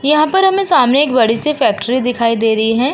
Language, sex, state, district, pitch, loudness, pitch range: Hindi, female, Uttar Pradesh, Jalaun, 255 Hz, -13 LUFS, 230-300 Hz